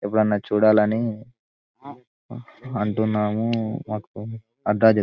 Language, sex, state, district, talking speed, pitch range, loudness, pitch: Telugu, male, Telangana, Nalgonda, 85 wpm, 105-115 Hz, -22 LUFS, 110 Hz